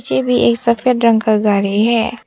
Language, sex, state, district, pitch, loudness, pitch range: Hindi, female, Arunachal Pradesh, Papum Pare, 220 Hz, -14 LUFS, 200-235 Hz